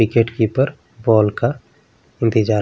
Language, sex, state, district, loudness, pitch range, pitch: Hindi, male, Bihar, Vaishali, -18 LUFS, 110-120 Hz, 115 Hz